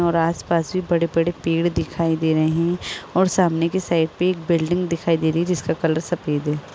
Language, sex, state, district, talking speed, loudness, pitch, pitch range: Hindi, female, Uttar Pradesh, Varanasi, 195 wpm, -21 LUFS, 170 Hz, 160-175 Hz